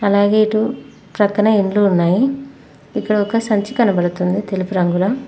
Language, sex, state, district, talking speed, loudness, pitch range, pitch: Telugu, female, Telangana, Mahabubabad, 125 wpm, -16 LUFS, 190-220 Hz, 205 Hz